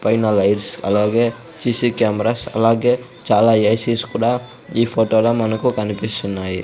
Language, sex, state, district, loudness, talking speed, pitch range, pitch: Telugu, male, Andhra Pradesh, Sri Satya Sai, -18 LUFS, 115 wpm, 105-120 Hz, 115 Hz